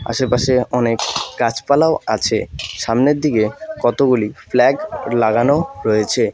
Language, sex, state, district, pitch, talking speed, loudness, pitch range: Bengali, male, West Bengal, Alipurduar, 125 Hz, 95 wpm, -17 LUFS, 115-140 Hz